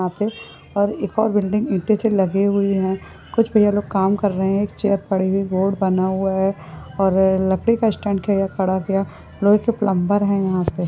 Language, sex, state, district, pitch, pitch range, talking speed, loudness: Hindi, female, Jharkhand, Jamtara, 195 Hz, 190-205 Hz, 225 wpm, -19 LUFS